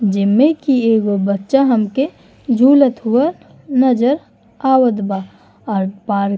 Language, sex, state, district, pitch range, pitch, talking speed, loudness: Bhojpuri, female, Uttar Pradesh, Gorakhpur, 200-270 Hz, 235 Hz, 120 wpm, -15 LUFS